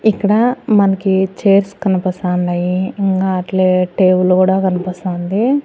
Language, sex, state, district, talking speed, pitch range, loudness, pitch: Telugu, female, Andhra Pradesh, Annamaya, 95 wpm, 185-200 Hz, -15 LUFS, 190 Hz